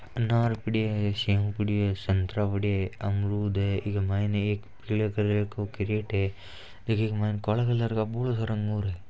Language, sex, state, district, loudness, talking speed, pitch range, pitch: Marwari, male, Rajasthan, Nagaur, -28 LUFS, 190 wpm, 100-110 Hz, 105 Hz